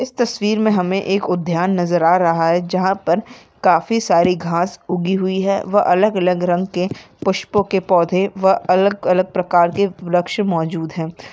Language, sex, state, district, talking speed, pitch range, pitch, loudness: Hindi, female, Bihar, Begusarai, 165 wpm, 175-195 Hz, 185 Hz, -17 LUFS